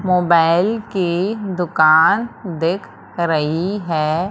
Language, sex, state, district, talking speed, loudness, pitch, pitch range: Hindi, female, Madhya Pradesh, Umaria, 85 wpm, -17 LUFS, 175 Hz, 165-195 Hz